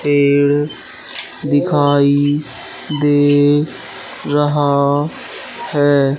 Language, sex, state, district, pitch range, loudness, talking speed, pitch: Hindi, male, Madhya Pradesh, Katni, 145-150 Hz, -15 LUFS, 50 wpm, 145 Hz